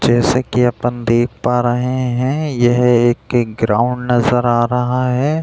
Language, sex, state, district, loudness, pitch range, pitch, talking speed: Hindi, male, Bihar, Jamui, -15 LUFS, 120-125 Hz, 125 Hz, 155 wpm